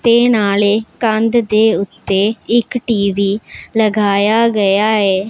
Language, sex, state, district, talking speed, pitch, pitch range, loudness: Punjabi, female, Punjab, Pathankot, 115 wpm, 215 Hz, 200-230 Hz, -14 LUFS